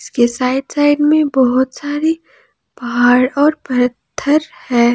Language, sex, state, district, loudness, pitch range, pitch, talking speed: Hindi, female, Jharkhand, Ranchi, -15 LUFS, 245-295 Hz, 270 Hz, 135 wpm